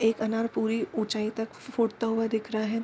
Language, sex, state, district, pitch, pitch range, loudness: Hindi, female, Bihar, Darbhanga, 225 Hz, 220-225 Hz, -29 LUFS